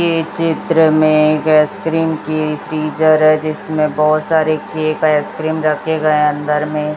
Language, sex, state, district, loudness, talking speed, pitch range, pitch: Hindi, male, Chhattisgarh, Raipur, -15 LUFS, 155 wpm, 155-160 Hz, 155 Hz